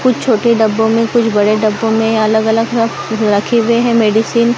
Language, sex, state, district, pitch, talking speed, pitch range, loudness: Hindi, female, Maharashtra, Gondia, 225 Hz, 195 wpm, 220-235 Hz, -12 LUFS